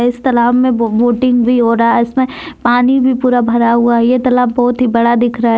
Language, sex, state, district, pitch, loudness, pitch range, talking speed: Hindi, female, Jharkhand, Deoghar, 245 Hz, -12 LUFS, 235-250 Hz, 245 wpm